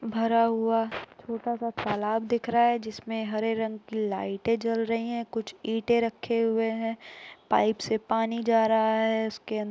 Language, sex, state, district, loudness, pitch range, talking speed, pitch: Hindi, female, Uttar Pradesh, Jalaun, -27 LUFS, 220-230 Hz, 180 wpm, 225 Hz